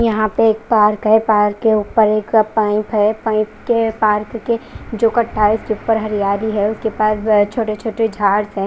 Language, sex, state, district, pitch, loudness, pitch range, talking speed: Hindi, female, Chandigarh, Chandigarh, 215 Hz, -16 LUFS, 210-225 Hz, 180 wpm